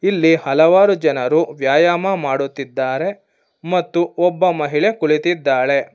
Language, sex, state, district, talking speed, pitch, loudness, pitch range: Kannada, female, Karnataka, Bangalore, 90 wpm, 165 Hz, -16 LUFS, 140-180 Hz